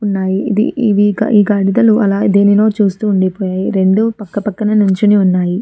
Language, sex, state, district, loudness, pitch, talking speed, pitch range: Telugu, female, Andhra Pradesh, Chittoor, -12 LUFS, 205 Hz, 160 wpm, 195-215 Hz